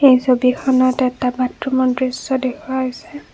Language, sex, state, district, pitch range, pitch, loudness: Assamese, female, Assam, Kamrup Metropolitan, 255-265 Hz, 255 Hz, -18 LUFS